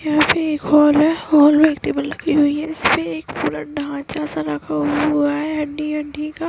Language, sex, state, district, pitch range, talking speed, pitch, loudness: Hindi, female, Uttarakhand, Uttarkashi, 280-305 Hz, 210 wpm, 295 Hz, -18 LUFS